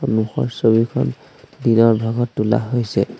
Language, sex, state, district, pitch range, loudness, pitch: Assamese, male, Assam, Sonitpur, 110-120 Hz, -18 LUFS, 115 Hz